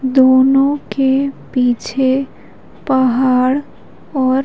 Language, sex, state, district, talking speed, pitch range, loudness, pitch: Hindi, female, Madhya Pradesh, Umaria, 65 wpm, 260-270 Hz, -15 LUFS, 265 Hz